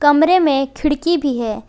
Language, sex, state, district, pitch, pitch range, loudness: Hindi, female, Jharkhand, Garhwa, 290 Hz, 270-315 Hz, -16 LUFS